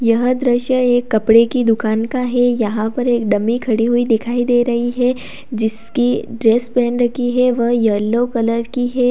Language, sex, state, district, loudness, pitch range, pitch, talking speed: Hindi, female, Uttar Pradesh, Lalitpur, -16 LUFS, 230-245 Hz, 240 Hz, 185 wpm